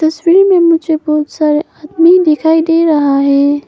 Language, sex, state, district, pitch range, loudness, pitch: Hindi, female, Arunachal Pradesh, Papum Pare, 300-330 Hz, -10 LUFS, 315 Hz